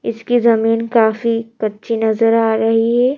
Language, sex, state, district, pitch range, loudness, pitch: Hindi, female, Madhya Pradesh, Bhopal, 225-230 Hz, -15 LUFS, 225 Hz